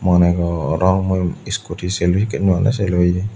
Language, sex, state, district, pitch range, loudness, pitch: Chakma, male, Tripura, Dhalai, 90-95 Hz, -18 LUFS, 90 Hz